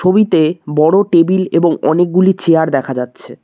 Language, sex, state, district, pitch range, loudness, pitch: Bengali, male, West Bengal, Cooch Behar, 155-185 Hz, -13 LUFS, 170 Hz